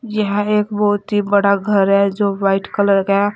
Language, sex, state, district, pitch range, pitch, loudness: Hindi, female, Uttar Pradesh, Saharanpur, 200-210 Hz, 200 Hz, -16 LUFS